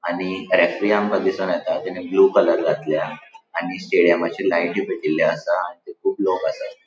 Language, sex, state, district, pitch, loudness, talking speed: Konkani, male, Goa, North and South Goa, 360 Hz, -20 LUFS, 155 wpm